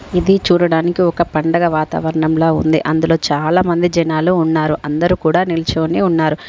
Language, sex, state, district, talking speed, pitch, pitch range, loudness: Telugu, female, Telangana, Komaram Bheem, 140 wpm, 165 Hz, 155-175 Hz, -15 LUFS